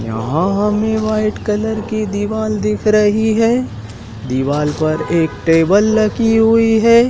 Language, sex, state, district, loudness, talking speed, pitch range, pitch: Hindi, male, Madhya Pradesh, Dhar, -15 LUFS, 135 wpm, 160-220 Hz, 210 Hz